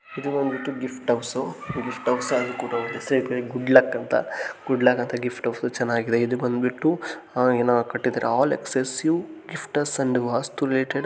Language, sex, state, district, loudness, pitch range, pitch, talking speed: Kannada, male, Karnataka, Gulbarga, -24 LUFS, 120-140 Hz, 130 Hz, 150 wpm